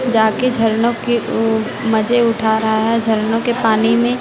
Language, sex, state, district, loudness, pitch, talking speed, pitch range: Hindi, female, Chhattisgarh, Raipur, -15 LUFS, 225 Hz, 170 wpm, 220-235 Hz